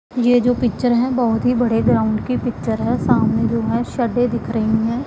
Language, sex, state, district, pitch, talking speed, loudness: Hindi, female, Punjab, Pathankot, 235 Hz, 215 wpm, -18 LUFS